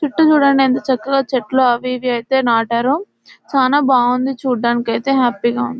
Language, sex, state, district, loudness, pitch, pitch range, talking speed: Telugu, female, Telangana, Nalgonda, -16 LUFS, 255 Hz, 245-270 Hz, 155 wpm